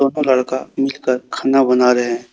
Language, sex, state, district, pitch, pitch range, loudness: Hindi, male, Jharkhand, Deoghar, 130 Hz, 125-135 Hz, -16 LUFS